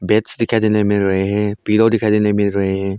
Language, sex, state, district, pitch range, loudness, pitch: Hindi, male, Arunachal Pradesh, Longding, 100-110 Hz, -16 LUFS, 105 Hz